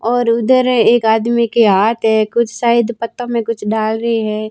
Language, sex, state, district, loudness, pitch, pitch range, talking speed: Hindi, female, Rajasthan, Barmer, -14 LUFS, 230 Hz, 220-235 Hz, 200 wpm